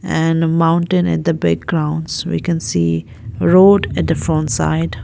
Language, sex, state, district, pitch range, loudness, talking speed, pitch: English, female, Arunachal Pradesh, Lower Dibang Valley, 110-165 Hz, -16 LUFS, 155 wpm, 160 Hz